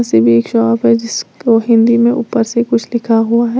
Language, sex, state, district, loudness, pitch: Hindi, female, Uttar Pradesh, Lalitpur, -12 LUFS, 230 Hz